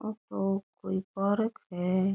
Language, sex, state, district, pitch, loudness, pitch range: Rajasthani, female, Rajasthan, Nagaur, 195 Hz, -31 LUFS, 190-215 Hz